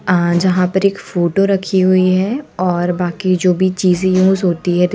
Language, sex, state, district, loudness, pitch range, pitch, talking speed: Hindi, female, Madhya Pradesh, Bhopal, -15 LUFS, 180-190 Hz, 185 Hz, 180 wpm